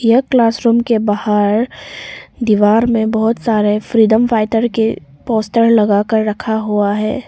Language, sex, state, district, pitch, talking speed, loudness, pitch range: Hindi, female, Arunachal Pradesh, Papum Pare, 220 Hz, 150 wpm, -14 LUFS, 210-230 Hz